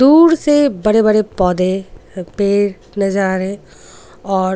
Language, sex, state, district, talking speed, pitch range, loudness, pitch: Hindi, female, Goa, North and South Goa, 130 wpm, 190-215 Hz, -15 LUFS, 200 Hz